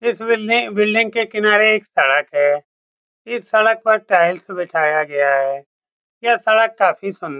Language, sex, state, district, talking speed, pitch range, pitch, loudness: Hindi, male, Bihar, Saran, 155 wpm, 155-225 Hz, 210 Hz, -16 LUFS